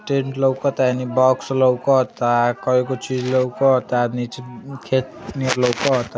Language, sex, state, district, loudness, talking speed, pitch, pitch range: Bhojpuri, male, Uttar Pradesh, Ghazipur, -19 LUFS, 115 wpm, 130 Hz, 125-130 Hz